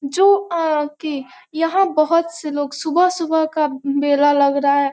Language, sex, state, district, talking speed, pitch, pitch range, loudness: Hindi, female, Bihar, Gopalganj, 170 wpm, 305 Hz, 285-335 Hz, -18 LUFS